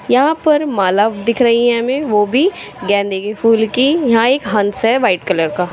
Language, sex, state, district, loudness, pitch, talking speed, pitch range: Hindi, female, Uttar Pradesh, Shamli, -14 LUFS, 230 Hz, 210 wpm, 200-255 Hz